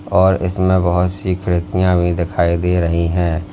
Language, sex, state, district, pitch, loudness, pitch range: Hindi, male, Uttar Pradesh, Lalitpur, 90 Hz, -16 LUFS, 85-95 Hz